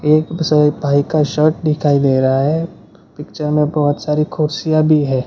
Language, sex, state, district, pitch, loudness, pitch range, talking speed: Hindi, male, Gujarat, Gandhinagar, 150 Hz, -15 LUFS, 145-155 Hz, 180 wpm